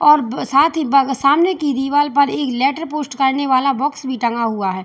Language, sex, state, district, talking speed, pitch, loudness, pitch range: Hindi, female, Uttar Pradesh, Lalitpur, 225 wpm, 275 Hz, -17 LUFS, 260-290 Hz